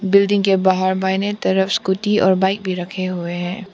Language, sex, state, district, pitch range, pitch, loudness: Hindi, female, Arunachal Pradesh, Papum Pare, 185-200 Hz, 190 Hz, -18 LUFS